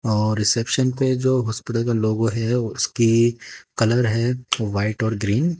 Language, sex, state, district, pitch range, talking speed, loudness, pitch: Hindi, female, Haryana, Jhajjar, 110-125 Hz, 160 wpm, -21 LUFS, 115 Hz